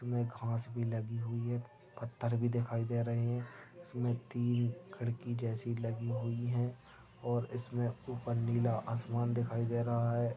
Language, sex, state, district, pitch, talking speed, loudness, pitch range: Hindi, male, Maharashtra, Sindhudurg, 120 Hz, 160 wpm, -37 LUFS, 115-120 Hz